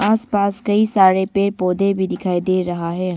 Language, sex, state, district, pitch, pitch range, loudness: Hindi, female, Arunachal Pradesh, Longding, 190 Hz, 185-200 Hz, -18 LUFS